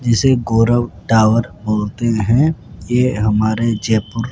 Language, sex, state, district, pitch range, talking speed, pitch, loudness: Hindi, male, Rajasthan, Jaipur, 110-120 Hz, 110 wpm, 115 Hz, -16 LUFS